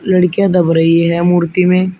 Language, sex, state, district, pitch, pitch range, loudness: Hindi, male, Uttar Pradesh, Shamli, 180 Hz, 170-185 Hz, -12 LUFS